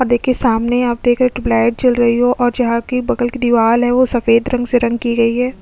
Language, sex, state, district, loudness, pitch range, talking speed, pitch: Hindi, female, Chhattisgarh, Sukma, -15 LUFS, 235-250 Hz, 310 wpm, 240 Hz